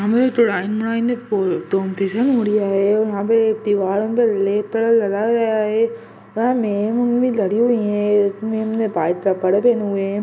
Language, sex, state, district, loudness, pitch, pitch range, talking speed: Hindi, male, Bihar, Araria, -18 LUFS, 215 Hz, 200-230 Hz, 45 wpm